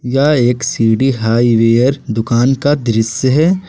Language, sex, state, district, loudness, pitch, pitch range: Hindi, male, Jharkhand, Garhwa, -13 LUFS, 125 Hz, 115-135 Hz